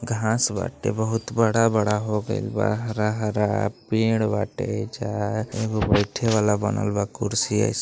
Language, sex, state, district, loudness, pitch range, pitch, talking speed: Bhojpuri, male, Uttar Pradesh, Deoria, -23 LUFS, 105-115 Hz, 110 Hz, 140 wpm